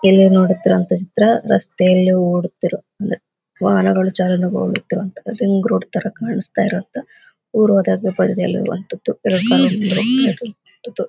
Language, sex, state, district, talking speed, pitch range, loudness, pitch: Kannada, female, Karnataka, Gulbarga, 105 wpm, 185-230 Hz, -17 LUFS, 195 Hz